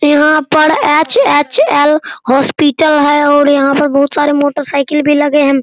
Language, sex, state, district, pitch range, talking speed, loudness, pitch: Hindi, male, Bihar, Araria, 285-300 Hz, 160 wpm, -10 LUFS, 290 Hz